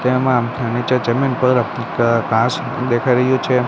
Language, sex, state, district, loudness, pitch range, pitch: Gujarati, male, Gujarat, Gandhinagar, -17 LUFS, 120-130 Hz, 125 Hz